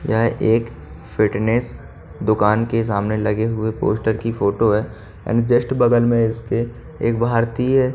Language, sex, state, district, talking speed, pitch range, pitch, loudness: Hindi, male, Haryana, Charkhi Dadri, 145 wpm, 110-120 Hz, 115 Hz, -19 LUFS